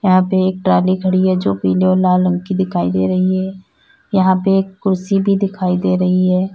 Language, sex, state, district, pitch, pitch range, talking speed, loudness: Hindi, female, Uttar Pradesh, Lalitpur, 185 Hz, 185-190 Hz, 230 wpm, -15 LUFS